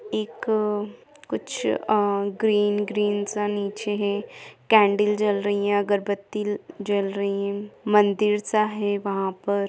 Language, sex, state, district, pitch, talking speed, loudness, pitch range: Hindi, female, Jharkhand, Jamtara, 205 Hz, 125 wpm, -24 LUFS, 200-210 Hz